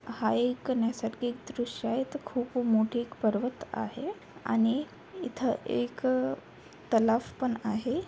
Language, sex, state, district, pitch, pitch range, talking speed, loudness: Marathi, female, Maharashtra, Aurangabad, 240 Hz, 225-255 Hz, 125 wpm, -31 LUFS